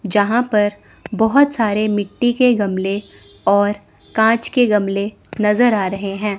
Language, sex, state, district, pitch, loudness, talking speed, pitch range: Hindi, female, Chandigarh, Chandigarh, 210 Hz, -17 LUFS, 140 wpm, 200-225 Hz